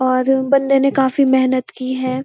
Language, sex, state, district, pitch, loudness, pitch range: Hindi, female, Uttarakhand, Uttarkashi, 260 Hz, -16 LUFS, 255-270 Hz